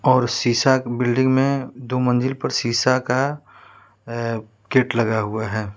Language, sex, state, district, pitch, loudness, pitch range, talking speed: Hindi, male, Bihar, West Champaran, 125 Hz, -20 LUFS, 115-130 Hz, 155 wpm